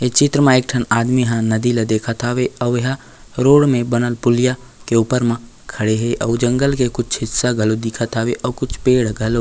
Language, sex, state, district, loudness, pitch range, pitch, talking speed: Chhattisgarhi, male, Chhattisgarh, Raigarh, -17 LUFS, 115-125 Hz, 120 Hz, 210 wpm